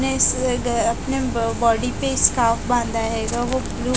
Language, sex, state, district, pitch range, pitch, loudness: Hindi, female, Bihar, West Champaran, 230-255 Hz, 240 Hz, -20 LUFS